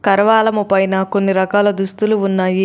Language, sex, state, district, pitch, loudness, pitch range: Telugu, female, Telangana, Adilabad, 195 Hz, -15 LUFS, 190-205 Hz